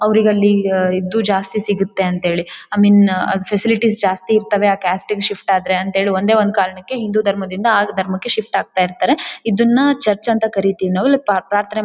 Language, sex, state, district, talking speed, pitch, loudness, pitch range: Kannada, female, Karnataka, Bellary, 165 wpm, 205 Hz, -16 LUFS, 190-215 Hz